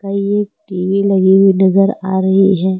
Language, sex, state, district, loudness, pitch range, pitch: Hindi, female, Uttar Pradesh, Lucknow, -13 LUFS, 190-200 Hz, 195 Hz